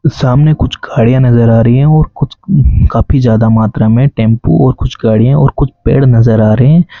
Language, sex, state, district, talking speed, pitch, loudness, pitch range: Hindi, male, Rajasthan, Bikaner, 205 wpm, 125 Hz, -9 LUFS, 110-140 Hz